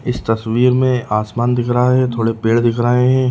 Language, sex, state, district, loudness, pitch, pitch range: Hindi, male, Chhattisgarh, Raigarh, -15 LUFS, 120 Hz, 115-125 Hz